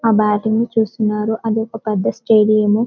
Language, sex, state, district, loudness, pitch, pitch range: Telugu, female, Telangana, Karimnagar, -17 LUFS, 220 Hz, 210-225 Hz